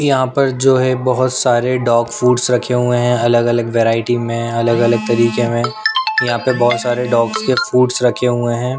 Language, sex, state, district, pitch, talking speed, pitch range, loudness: Hindi, male, Punjab, Pathankot, 120 Hz, 200 wpm, 120-130 Hz, -15 LUFS